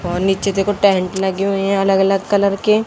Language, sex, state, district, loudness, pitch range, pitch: Hindi, female, Haryana, Jhajjar, -16 LUFS, 195-200 Hz, 195 Hz